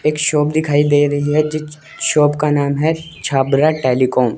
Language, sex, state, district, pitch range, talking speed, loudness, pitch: Hindi, male, Chandigarh, Chandigarh, 145-155 Hz, 190 wpm, -16 LUFS, 150 Hz